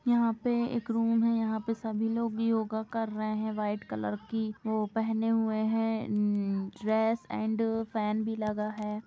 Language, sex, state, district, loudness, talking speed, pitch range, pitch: Hindi, female, Uttar Pradesh, Jalaun, -31 LUFS, 165 wpm, 215-225 Hz, 220 Hz